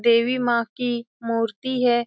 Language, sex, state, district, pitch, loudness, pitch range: Hindi, female, Bihar, Saran, 240 Hz, -23 LUFS, 235-250 Hz